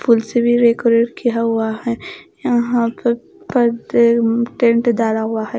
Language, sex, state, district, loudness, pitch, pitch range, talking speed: Hindi, female, Bihar, Katihar, -17 LUFS, 235 Hz, 230-240 Hz, 150 wpm